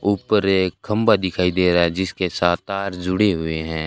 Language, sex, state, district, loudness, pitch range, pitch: Hindi, male, Rajasthan, Bikaner, -20 LUFS, 85-100 Hz, 90 Hz